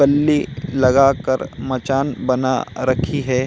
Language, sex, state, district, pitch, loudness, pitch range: Hindi, male, Bihar, Samastipur, 135 Hz, -18 LUFS, 130-140 Hz